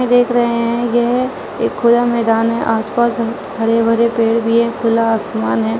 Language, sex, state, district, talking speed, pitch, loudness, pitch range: Hindi, female, Uttar Pradesh, Muzaffarnagar, 175 wpm, 230 Hz, -15 LUFS, 225-240 Hz